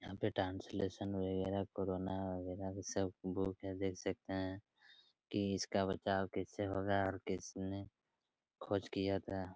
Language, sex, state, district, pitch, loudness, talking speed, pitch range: Hindi, male, Chhattisgarh, Raigarh, 95 Hz, -41 LUFS, 145 wpm, 95-100 Hz